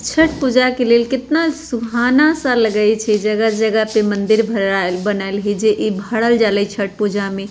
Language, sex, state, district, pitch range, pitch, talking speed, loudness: Bajjika, female, Bihar, Vaishali, 205-245 Hz, 220 Hz, 185 wpm, -16 LUFS